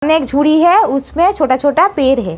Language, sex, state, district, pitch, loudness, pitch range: Hindi, female, Uttar Pradesh, Etah, 290 Hz, -12 LUFS, 270-320 Hz